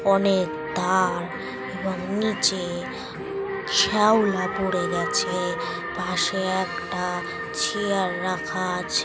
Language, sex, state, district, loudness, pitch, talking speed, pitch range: Bengali, male, West Bengal, Kolkata, -24 LUFS, 185 Hz, 80 wpm, 180-200 Hz